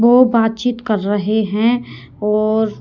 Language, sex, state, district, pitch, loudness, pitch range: Hindi, female, Haryana, Rohtak, 220 Hz, -16 LUFS, 210-235 Hz